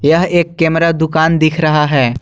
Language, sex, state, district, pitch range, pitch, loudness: Hindi, male, Jharkhand, Garhwa, 155-165 Hz, 160 Hz, -12 LUFS